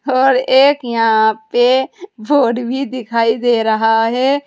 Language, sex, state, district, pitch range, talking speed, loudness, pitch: Hindi, female, Uttar Pradesh, Saharanpur, 230-265 Hz, 135 wpm, -14 LUFS, 245 Hz